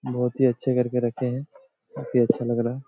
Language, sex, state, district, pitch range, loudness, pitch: Hindi, male, Jharkhand, Jamtara, 120-130 Hz, -24 LUFS, 125 Hz